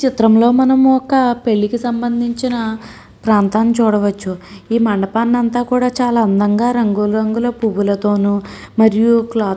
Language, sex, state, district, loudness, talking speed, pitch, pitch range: Telugu, female, Andhra Pradesh, Srikakulam, -15 LUFS, 130 wpm, 225 Hz, 210-240 Hz